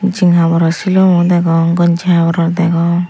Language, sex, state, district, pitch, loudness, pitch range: Chakma, female, Tripura, Unakoti, 170 Hz, -12 LUFS, 170-175 Hz